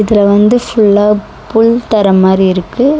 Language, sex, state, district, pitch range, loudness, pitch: Tamil, female, Tamil Nadu, Chennai, 200-225 Hz, -10 LUFS, 210 Hz